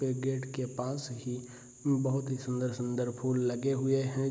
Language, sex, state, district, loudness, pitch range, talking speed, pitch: Hindi, male, Bihar, Saharsa, -33 LUFS, 125-135 Hz, 180 wpm, 130 Hz